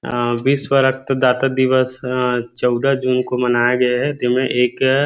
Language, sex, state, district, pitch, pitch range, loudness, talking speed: Chhattisgarhi, male, Chhattisgarh, Rajnandgaon, 125 Hz, 125-135 Hz, -17 LUFS, 165 wpm